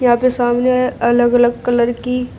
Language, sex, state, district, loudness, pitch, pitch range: Hindi, female, Uttar Pradesh, Shamli, -15 LUFS, 245 Hz, 240-250 Hz